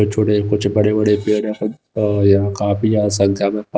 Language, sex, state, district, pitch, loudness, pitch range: Hindi, male, Himachal Pradesh, Shimla, 105 Hz, -17 LUFS, 100-105 Hz